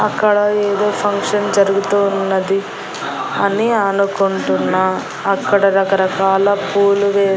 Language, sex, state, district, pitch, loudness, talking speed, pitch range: Telugu, female, Andhra Pradesh, Annamaya, 200 Hz, -15 LUFS, 90 wpm, 195-205 Hz